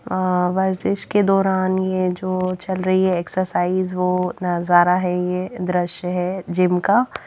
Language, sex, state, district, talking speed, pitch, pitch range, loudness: Hindi, female, Haryana, Jhajjar, 140 wpm, 185 Hz, 180-185 Hz, -20 LUFS